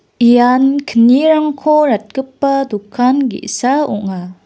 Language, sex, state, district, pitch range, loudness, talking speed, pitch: Garo, female, Meghalaya, West Garo Hills, 225-280 Hz, -13 LUFS, 80 wpm, 255 Hz